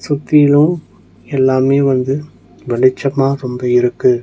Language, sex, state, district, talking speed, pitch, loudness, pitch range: Tamil, male, Tamil Nadu, Nilgiris, 85 wpm, 135 Hz, -14 LUFS, 125-145 Hz